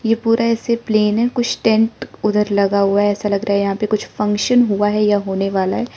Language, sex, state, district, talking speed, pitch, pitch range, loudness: Hindi, male, Arunachal Pradesh, Lower Dibang Valley, 240 wpm, 210 Hz, 200-225 Hz, -17 LUFS